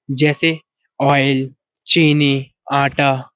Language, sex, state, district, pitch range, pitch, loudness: Hindi, male, Uttar Pradesh, Budaun, 135-150 Hz, 140 Hz, -16 LUFS